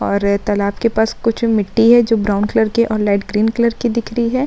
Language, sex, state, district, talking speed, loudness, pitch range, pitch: Hindi, female, Uttar Pradesh, Muzaffarnagar, 270 wpm, -15 LUFS, 205-235 Hz, 225 Hz